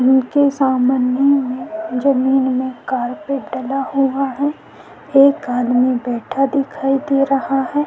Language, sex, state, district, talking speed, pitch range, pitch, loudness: Hindi, female, Bihar, Vaishali, 115 wpm, 255-275 Hz, 270 Hz, -17 LUFS